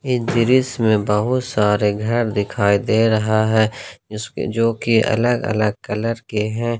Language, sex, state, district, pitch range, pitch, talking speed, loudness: Hindi, male, Jharkhand, Ranchi, 105-120 Hz, 110 Hz, 150 wpm, -18 LUFS